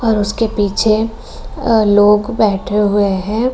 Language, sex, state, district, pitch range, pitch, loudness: Hindi, female, Bihar, Saran, 205-225 Hz, 215 Hz, -14 LUFS